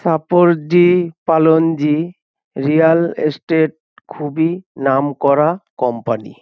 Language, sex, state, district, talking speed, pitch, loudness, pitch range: Bengali, male, West Bengal, North 24 Parganas, 75 wpm, 160 Hz, -15 LUFS, 150-170 Hz